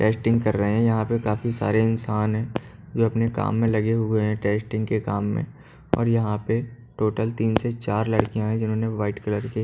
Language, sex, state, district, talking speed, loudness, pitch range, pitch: Hindi, male, Haryana, Charkhi Dadri, 210 wpm, -24 LUFS, 105-115 Hz, 110 Hz